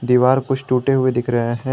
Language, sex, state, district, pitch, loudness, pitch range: Hindi, male, Jharkhand, Garhwa, 130 Hz, -18 LUFS, 120-130 Hz